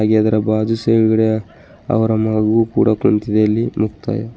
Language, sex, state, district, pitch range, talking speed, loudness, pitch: Kannada, male, Karnataka, Bidar, 110-115 Hz, 150 wpm, -16 LUFS, 110 Hz